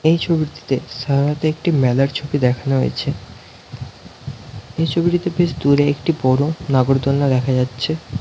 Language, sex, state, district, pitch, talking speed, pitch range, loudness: Bengali, male, West Bengal, North 24 Parganas, 140 Hz, 130 wpm, 130-155 Hz, -18 LUFS